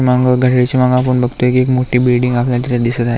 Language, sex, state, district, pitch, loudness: Marathi, male, Maharashtra, Aurangabad, 125 Hz, -13 LUFS